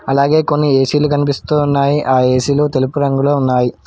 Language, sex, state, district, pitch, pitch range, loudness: Telugu, male, Telangana, Hyderabad, 140 Hz, 130-145 Hz, -14 LUFS